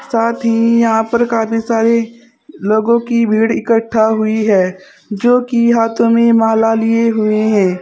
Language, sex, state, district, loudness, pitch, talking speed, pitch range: Hindi, female, Uttar Pradesh, Saharanpur, -13 LUFS, 230 Hz, 155 wpm, 220-235 Hz